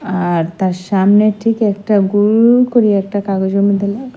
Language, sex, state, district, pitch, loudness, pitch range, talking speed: Bengali, female, Assam, Hailakandi, 200 Hz, -13 LUFS, 195-215 Hz, 160 wpm